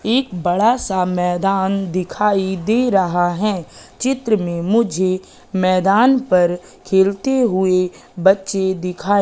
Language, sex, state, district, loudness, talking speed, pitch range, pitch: Hindi, female, Madhya Pradesh, Katni, -17 LUFS, 110 wpm, 180-210 Hz, 190 Hz